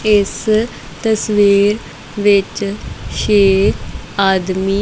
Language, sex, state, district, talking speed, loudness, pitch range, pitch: Punjabi, female, Punjab, Kapurthala, 60 wpm, -15 LUFS, 195-215 Hz, 205 Hz